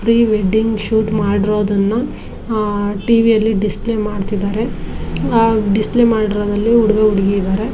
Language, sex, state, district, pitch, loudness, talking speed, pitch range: Kannada, female, Karnataka, Dharwad, 215 Hz, -15 LUFS, 100 wpm, 205-225 Hz